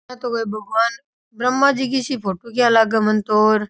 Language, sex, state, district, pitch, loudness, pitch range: Rajasthani, male, Rajasthan, Nagaur, 230 Hz, -18 LUFS, 215-255 Hz